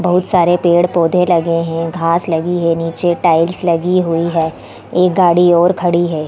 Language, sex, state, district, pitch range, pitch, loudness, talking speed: Hindi, female, Bihar, East Champaran, 165-180 Hz, 170 Hz, -14 LUFS, 170 wpm